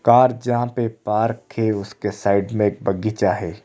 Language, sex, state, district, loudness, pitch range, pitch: Hindi, male, Odisha, Khordha, -21 LUFS, 100-120 Hz, 110 Hz